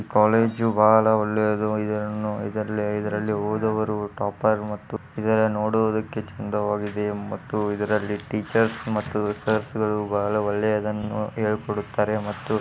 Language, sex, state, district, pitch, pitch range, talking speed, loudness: Kannada, male, Karnataka, Dharwad, 105 Hz, 105-110 Hz, 90 wpm, -24 LUFS